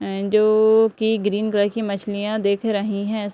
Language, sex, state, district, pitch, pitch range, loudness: Hindi, female, Bihar, Gopalganj, 210 Hz, 205-220 Hz, -20 LUFS